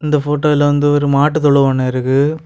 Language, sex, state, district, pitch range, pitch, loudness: Tamil, male, Tamil Nadu, Kanyakumari, 140-150 Hz, 145 Hz, -14 LUFS